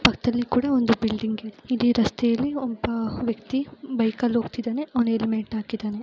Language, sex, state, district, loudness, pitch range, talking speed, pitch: Kannada, female, Karnataka, Gulbarga, -25 LUFS, 225-250 Hz, 160 wpm, 235 Hz